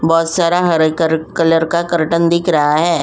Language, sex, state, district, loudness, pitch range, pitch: Hindi, female, Uttar Pradesh, Jyotiba Phule Nagar, -14 LUFS, 160-170 Hz, 165 Hz